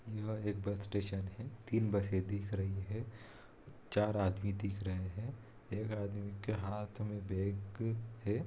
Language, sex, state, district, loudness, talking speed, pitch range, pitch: Hindi, male, Bihar, East Champaran, -39 LUFS, 155 wpm, 100-110 Hz, 105 Hz